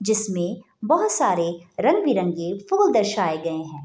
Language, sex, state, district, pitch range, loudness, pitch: Hindi, female, Bihar, Bhagalpur, 170-220 Hz, -22 LUFS, 190 Hz